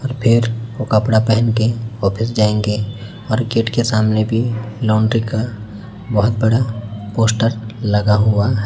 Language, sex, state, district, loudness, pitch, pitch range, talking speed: Hindi, male, Chhattisgarh, Raipur, -17 LUFS, 110 Hz, 105-115 Hz, 140 wpm